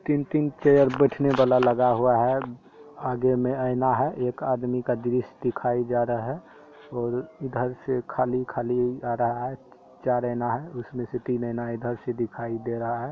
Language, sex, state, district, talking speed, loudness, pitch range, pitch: Hindi, male, Bihar, Saharsa, 180 wpm, -25 LUFS, 120-130 Hz, 125 Hz